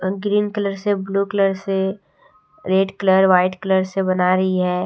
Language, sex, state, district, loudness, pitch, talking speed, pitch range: Hindi, female, Jharkhand, Deoghar, -19 LUFS, 190 Hz, 175 wpm, 185-200 Hz